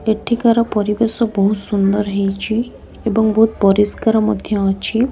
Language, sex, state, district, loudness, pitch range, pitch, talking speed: Odia, female, Odisha, Khordha, -16 LUFS, 200-225 Hz, 215 Hz, 115 wpm